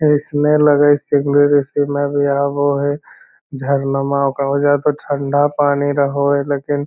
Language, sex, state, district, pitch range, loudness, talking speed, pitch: Magahi, male, Bihar, Lakhisarai, 140-145 Hz, -16 LUFS, 155 wpm, 145 Hz